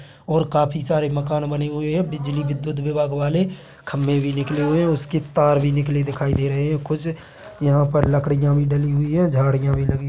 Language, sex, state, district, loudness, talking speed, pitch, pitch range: Hindi, male, Chhattisgarh, Bilaspur, -21 LUFS, 215 wpm, 145 Hz, 140-155 Hz